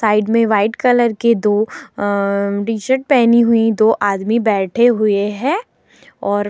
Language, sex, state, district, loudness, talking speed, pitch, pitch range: Hindi, female, Uttar Pradesh, Muzaffarnagar, -15 LUFS, 165 wpm, 220 Hz, 205-235 Hz